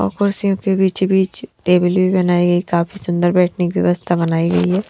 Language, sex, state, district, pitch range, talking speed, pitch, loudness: Hindi, female, Haryana, Rohtak, 175-190 Hz, 195 wpm, 180 Hz, -16 LUFS